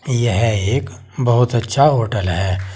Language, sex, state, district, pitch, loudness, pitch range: Hindi, male, Uttar Pradesh, Saharanpur, 115 Hz, -17 LUFS, 100-120 Hz